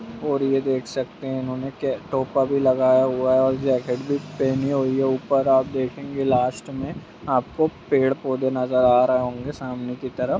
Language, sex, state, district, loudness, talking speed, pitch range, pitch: Hindi, male, Bihar, Purnia, -22 LUFS, 180 wpm, 130-135 Hz, 130 Hz